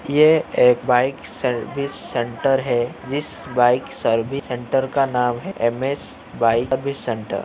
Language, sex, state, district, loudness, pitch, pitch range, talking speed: Hindi, male, Uttar Pradesh, Jyotiba Phule Nagar, -20 LUFS, 125 Hz, 120-140 Hz, 135 wpm